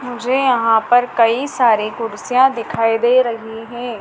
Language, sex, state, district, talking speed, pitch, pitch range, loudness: Hindi, female, Madhya Pradesh, Dhar, 150 wpm, 235 Hz, 225-250 Hz, -16 LUFS